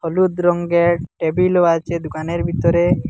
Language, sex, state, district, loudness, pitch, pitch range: Bengali, male, Assam, Hailakandi, -17 LUFS, 170 Hz, 165-175 Hz